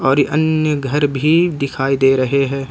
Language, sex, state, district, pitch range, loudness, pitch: Hindi, male, Jharkhand, Ranchi, 135-150 Hz, -16 LUFS, 140 Hz